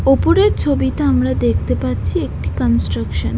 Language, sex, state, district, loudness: Bengali, female, West Bengal, Jhargram, -17 LUFS